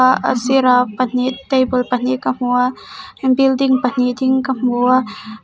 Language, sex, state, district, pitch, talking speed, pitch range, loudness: Mizo, female, Mizoram, Aizawl, 250 Hz, 165 wpm, 250-260 Hz, -16 LUFS